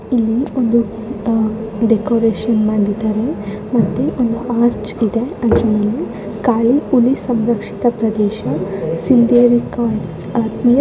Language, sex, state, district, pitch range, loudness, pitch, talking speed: Kannada, female, Karnataka, Dharwad, 215-240 Hz, -16 LUFS, 230 Hz, 90 wpm